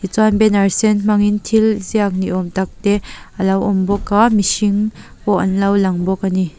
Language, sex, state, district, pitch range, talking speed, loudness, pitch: Mizo, female, Mizoram, Aizawl, 190-210 Hz, 230 wpm, -16 LUFS, 200 Hz